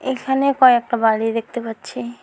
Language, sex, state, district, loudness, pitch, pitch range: Bengali, female, West Bengal, Alipurduar, -17 LUFS, 235 Hz, 225-260 Hz